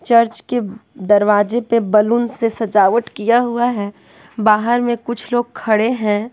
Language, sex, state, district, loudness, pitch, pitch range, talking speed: Hindi, female, Bihar, West Champaran, -16 LUFS, 230 Hz, 210-240 Hz, 150 wpm